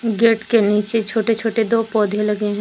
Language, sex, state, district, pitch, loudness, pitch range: Hindi, female, Jharkhand, Deoghar, 220 Hz, -18 LUFS, 210-225 Hz